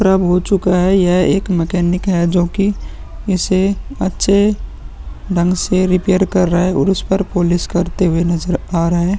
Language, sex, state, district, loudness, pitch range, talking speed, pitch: Hindi, male, Uttar Pradesh, Muzaffarnagar, -15 LUFS, 175-190 Hz, 175 wpm, 185 Hz